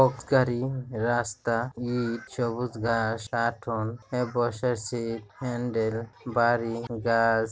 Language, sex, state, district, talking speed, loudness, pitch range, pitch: Bengali, male, West Bengal, Jhargram, 80 wpm, -28 LUFS, 115-125 Hz, 120 Hz